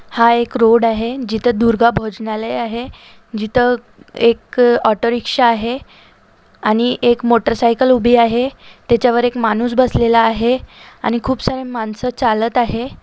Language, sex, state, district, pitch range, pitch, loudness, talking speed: Marathi, female, Maharashtra, Solapur, 230-245 Hz, 235 Hz, -15 LUFS, 140 wpm